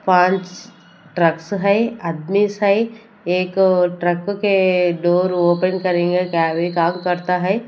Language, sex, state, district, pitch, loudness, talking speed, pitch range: Hindi, female, Punjab, Kapurthala, 180 Hz, -18 LUFS, 125 wpm, 175-200 Hz